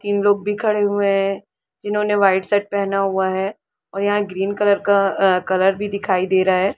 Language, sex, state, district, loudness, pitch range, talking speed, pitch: Hindi, female, Jharkhand, Jamtara, -19 LUFS, 190-205 Hz, 215 wpm, 200 Hz